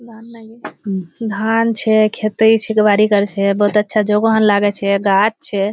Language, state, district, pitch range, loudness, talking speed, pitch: Surjapuri, Bihar, Kishanganj, 205-225 Hz, -15 LUFS, 135 wpm, 215 Hz